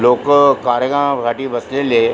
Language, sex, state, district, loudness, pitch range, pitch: Marathi, male, Maharashtra, Aurangabad, -15 LUFS, 120-140 Hz, 130 Hz